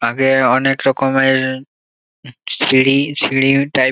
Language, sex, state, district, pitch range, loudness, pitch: Bengali, male, West Bengal, Jalpaiguri, 130-135 Hz, -14 LUFS, 135 Hz